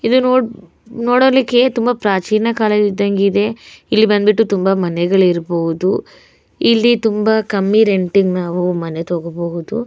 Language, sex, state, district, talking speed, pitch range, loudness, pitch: Kannada, female, Karnataka, Bellary, 130 wpm, 180-230 Hz, -15 LUFS, 205 Hz